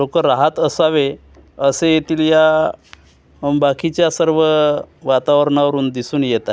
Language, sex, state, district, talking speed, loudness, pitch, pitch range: Marathi, male, Maharashtra, Gondia, 100 wpm, -15 LUFS, 145 Hz, 135-155 Hz